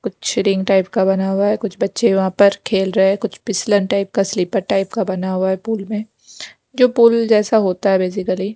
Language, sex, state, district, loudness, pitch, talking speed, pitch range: Hindi, female, Bihar, Kaimur, -17 LUFS, 200 Hz, 225 wpm, 190-215 Hz